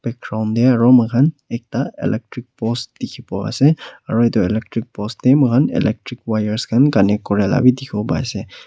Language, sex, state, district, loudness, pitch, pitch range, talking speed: Nagamese, male, Nagaland, Kohima, -17 LUFS, 120 Hz, 110-130 Hz, 160 wpm